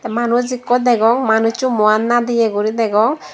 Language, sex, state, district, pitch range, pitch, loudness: Chakma, female, Tripura, Dhalai, 220-240 Hz, 230 Hz, -15 LUFS